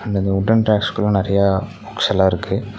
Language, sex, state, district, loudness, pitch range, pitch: Tamil, male, Tamil Nadu, Nilgiris, -18 LUFS, 95-105 Hz, 100 Hz